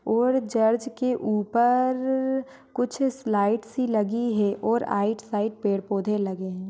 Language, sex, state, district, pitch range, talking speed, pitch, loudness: Hindi, female, Maharashtra, Nagpur, 210-255 Hz, 145 wpm, 225 Hz, -25 LUFS